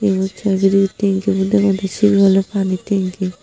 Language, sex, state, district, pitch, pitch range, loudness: Chakma, female, Tripura, Unakoti, 195 Hz, 190-200 Hz, -16 LUFS